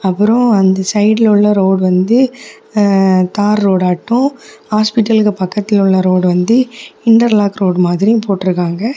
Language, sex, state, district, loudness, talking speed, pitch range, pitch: Tamil, female, Tamil Nadu, Kanyakumari, -12 LUFS, 120 wpm, 190-225 Hz, 205 Hz